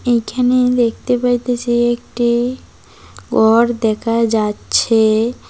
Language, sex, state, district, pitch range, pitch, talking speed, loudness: Bengali, female, West Bengal, Cooch Behar, 225-245 Hz, 240 Hz, 75 wpm, -15 LUFS